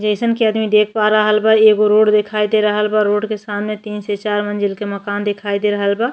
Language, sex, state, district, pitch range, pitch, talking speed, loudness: Bhojpuri, female, Uttar Pradesh, Ghazipur, 205-215 Hz, 210 Hz, 255 wpm, -16 LUFS